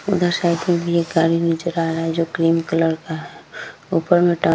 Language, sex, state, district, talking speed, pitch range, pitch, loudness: Hindi, female, Bihar, Vaishali, 235 wpm, 165-170 Hz, 165 Hz, -19 LUFS